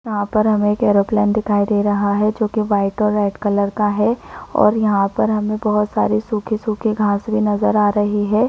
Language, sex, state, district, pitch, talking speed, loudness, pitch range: Hindi, female, Chhattisgarh, Bilaspur, 210 Hz, 225 wpm, -17 LUFS, 205-215 Hz